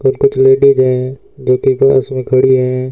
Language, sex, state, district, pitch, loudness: Hindi, male, Rajasthan, Bikaner, 130 Hz, -12 LUFS